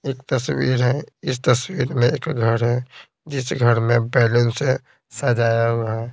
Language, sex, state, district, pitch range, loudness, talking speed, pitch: Hindi, male, Bihar, Patna, 115-130 Hz, -20 LUFS, 165 wpm, 125 Hz